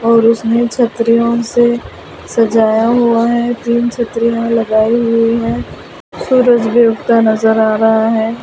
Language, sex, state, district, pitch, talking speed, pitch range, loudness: Hindi, female, Delhi, New Delhi, 230 Hz, 130 wpm, 225-235 Hz, -12 LUFS